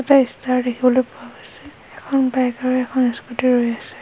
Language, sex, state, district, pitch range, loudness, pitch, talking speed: Assamese, female, Assam, Hailakandi, 245-255 Hz, -19 LUFS, 255 Hz, 180 wpm